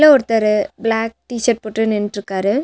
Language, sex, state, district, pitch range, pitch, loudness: Tamil, female, Tamil Nadu, Nilgiris, 210-240 Hz, 225 Hz, -18 LUFS